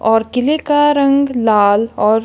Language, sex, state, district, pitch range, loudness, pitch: Hindi, female, Punjab, Kapurthala, 220-280 Hz, -13 LUFS, 235 Hz